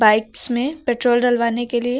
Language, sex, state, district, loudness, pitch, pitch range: Hindi, female, Uttar Pradesh, Lucknow, -19 LUFS, 240 Hz, 235-245 Hz